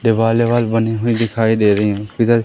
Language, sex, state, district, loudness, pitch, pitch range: Hindi, female, Madhya Pradesh, Umaria, -16 LUFS, 115 Hz, 110-115 Hz